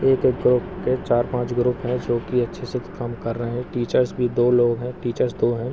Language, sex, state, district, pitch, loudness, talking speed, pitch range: Hindi, male, Bihar, Bhagalpur, 120 Hz, -22 LUFS, 230 wpm, 120-125 Hz